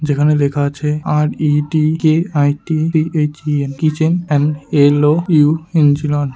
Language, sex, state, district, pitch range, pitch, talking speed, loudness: Bengali, male, West Bengal, Kolkata, 145-155 Hz, 150 Hz, 170 wpm, -15 LUFS